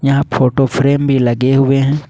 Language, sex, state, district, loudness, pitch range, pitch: Hindi, male, Jharkhand, Ranchi, -13 LUFS, 130-140 Hz, 135 Hz